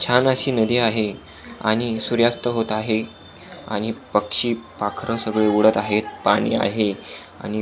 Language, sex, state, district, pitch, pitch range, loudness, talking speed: Marathi, male, Maharashtra, Pune, 110 Hz, 105-115 Hz, -21 LUFS, 135 wpm